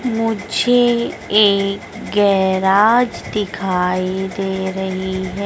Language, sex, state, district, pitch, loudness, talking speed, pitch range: Hindi, female, Madhya Pradesh, Dhar, 200 Hz, -17 LUFS, 75 wpm, 190-220 Hz